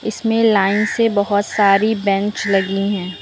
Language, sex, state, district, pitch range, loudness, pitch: Hindi, female, Uttar Pradesh, Lucknow, 195-220 Hz, -16 LUFS, 205 Hz